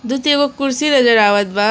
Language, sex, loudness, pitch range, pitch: Bhojpuri, female, -14 LUFS, 210-285 Hz, 265 Hz